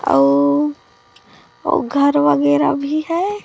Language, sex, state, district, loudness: Hindi, female, Chhattisgarh, Raipur, -16 LUFS